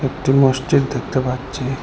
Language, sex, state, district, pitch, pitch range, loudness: Bengali, male, Assam, Hailakandi, 130 Hz, 130-135 Hz, -18 LUFS